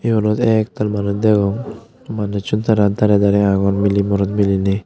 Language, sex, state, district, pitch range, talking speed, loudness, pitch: Chakma, male, Tripura, West Tripura, 100-110 Hz, 160 wpm, -16 LUFS, 105 Hz